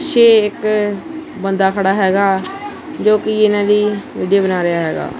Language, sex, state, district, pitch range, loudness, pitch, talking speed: Punjabi, male, Punjab, Kapurthala, 195-215 Hz, -15 LUFS, 205 Hz, 150 wpm